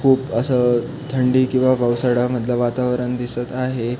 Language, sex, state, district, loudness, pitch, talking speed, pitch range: Marathi, male, Maharashtra, Pune, -19 LUFS, 125 Hz, 135 wpm, 120-130 Hz